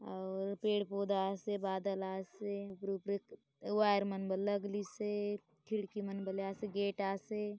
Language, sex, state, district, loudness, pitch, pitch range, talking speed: Halbi, female, Chhattisgarh, Bastar, -38 LUFS, 200 Hz, 195-205 Hz, 85 wpm